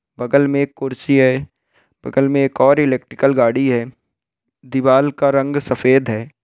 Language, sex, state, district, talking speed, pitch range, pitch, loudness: Hindi, male, Bihar, Bhagalpur, 160 wpm, 130-140 Hz, 135 Hz, -16 LUFS